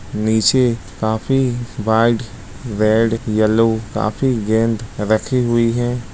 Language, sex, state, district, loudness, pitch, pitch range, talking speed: Hindi, male, Bihar, Lakhisarai, -17 LUFS, 115 Hz, 110-120 Hz, 100 wpm